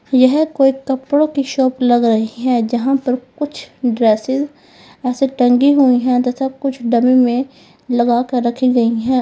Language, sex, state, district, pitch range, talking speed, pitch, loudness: Hindi, female, Uttar Pradesh, Lalitpur, 240-270 Hz, 165 wpm, 255 Hz, -15 LUFS